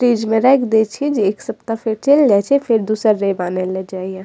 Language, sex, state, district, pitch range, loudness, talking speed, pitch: Maithili, female, Bihar, Madhepura, 195-245 Hz, -16 LUFS, 270 wpm, 220 Hz